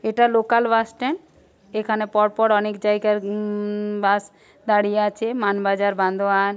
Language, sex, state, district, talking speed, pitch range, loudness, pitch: Bengali, female, West Bengal, Purulia, 130 wpm, 200-225 Hz, -21 LUFS, 210 Hz